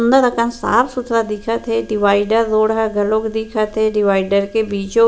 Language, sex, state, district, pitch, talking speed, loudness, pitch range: Chhattisgarhi, female, Chhattisgarh, Rajnandgaon, 220 Hz, 190 wpm, -17 LUFS, 210-230 Hz